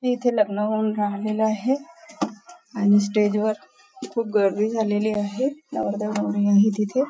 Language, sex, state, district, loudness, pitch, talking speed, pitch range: Marathi, female, Maharashtra, Nagpur, -23 LUFS, 215 Hz, 135 wpm, 205-245 Hz